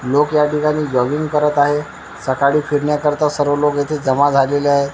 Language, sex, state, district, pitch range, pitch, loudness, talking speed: Marathi, female, Maharashtra, Washim, 140-150 Hz, 145 Hz, -16 LUFS, 170 wpm